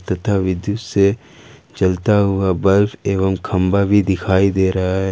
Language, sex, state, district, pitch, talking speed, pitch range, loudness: Hindi, male, Jharkhand, Ranchi, 95 Hz, 150 wpm, 95-105 Hz, -17 LUFS